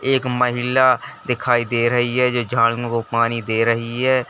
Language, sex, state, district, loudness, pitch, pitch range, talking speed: Hindi, male, Uttar Pradesh, Lalitpur, -19 LUFS, 120 Hz, 115-125 Hz, 180 wpm